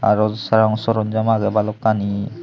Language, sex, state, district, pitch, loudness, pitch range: Chakma, male, Tripura, Unakoti, 110 Hz, -18 LUFS, 105-110 Hz